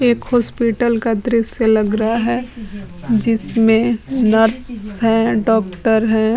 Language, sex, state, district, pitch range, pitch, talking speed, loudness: Hindi, female, Bihar, Kaimur, 220-235 Hz, 225 Hz, 115 wpm, -16 LUFS